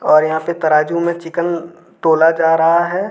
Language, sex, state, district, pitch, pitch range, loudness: Hindi, male, Jharkhand, Deoghar, 165 Hz, 160-170 Hz, -15 LUFS